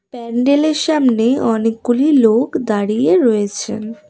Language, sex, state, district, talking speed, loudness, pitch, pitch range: Bengali, female, West Bengal, Cooch Behar, 90 wpm, -15 LUFS, 240 Hz, 220-285 Hz